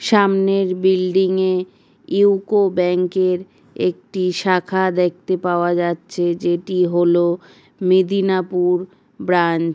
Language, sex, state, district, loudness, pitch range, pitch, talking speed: Bengali, female, West Bengal, Paschim Medinipur, -18 LUFS, 180-190 Hz, 185 Hz, 100 wpm